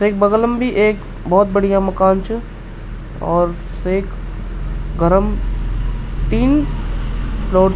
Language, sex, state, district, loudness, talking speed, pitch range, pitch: Garhwali, male, Uttarakhand, Tehri Garhwal, -18 LUFS, 100 wpm, 170-205 Hz, 190 Hz